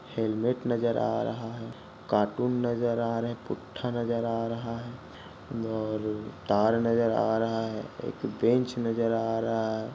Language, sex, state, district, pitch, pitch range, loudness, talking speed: Hindi, male, Maharashtra, Solapur, 115 Hz, 110-120 Hz, -29 LUFS, 165 wpm